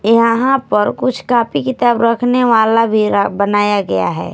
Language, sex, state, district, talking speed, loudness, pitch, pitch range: Hindi, female, Punjab, Kapurthala, 150 wpm, -14 LUFS, 230 Hz, 210-245 Hz